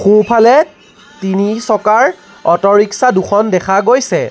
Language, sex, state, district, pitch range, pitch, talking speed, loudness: Assamese, male, Assam, Sonitpur, 195-235 Hz, 210 Hz, 100 wpm, -11 LUFS